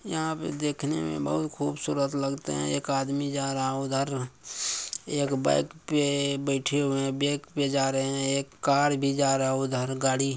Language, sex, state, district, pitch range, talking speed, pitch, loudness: Maithili, male, Bihar, Samastipur, 135-140 Hz, 185 wpm, 135 Hz, -28 LUFS